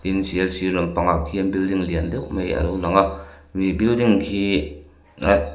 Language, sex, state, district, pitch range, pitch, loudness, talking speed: Mizo, male, Mizoram, Aizawl, 85-95 Hz, 95 Hz, -21 LUFS, 170 wpm